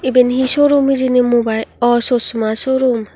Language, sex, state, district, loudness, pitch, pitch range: Chakma, female, Tripura, Unakoti, -14 LUFS, 250 Hz, 230-260 Hz